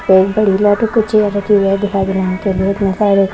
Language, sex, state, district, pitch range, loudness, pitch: Hindi, female, Maharashtra, Washim, 195-205 Hz, -14 LUFS, 200 Hz